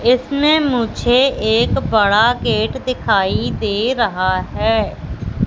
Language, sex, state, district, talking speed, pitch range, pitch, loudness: Hindi, female, Madhya Pradesh, Katni, 100 wpm, 210-255 Hz, 235 Hz, -16 LUFS